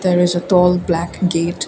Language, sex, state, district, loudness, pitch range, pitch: English, female, Assam, Kamrup Metropolitan, -16 LUFS, 170-180 Hz, 175 Hz